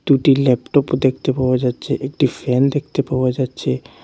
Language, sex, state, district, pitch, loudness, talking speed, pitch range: Bengali, male, Assam, Hailakandi, 130 Hz, -18 LUFS, 150 wpm, 125-140 Hz